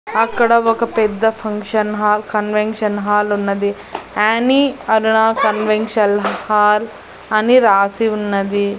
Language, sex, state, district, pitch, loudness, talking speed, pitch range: Telugu, female, Andhra Pradesh, Annamaya, 215 Hz, -15 LUFS, 100 wpm, 210-225 Hz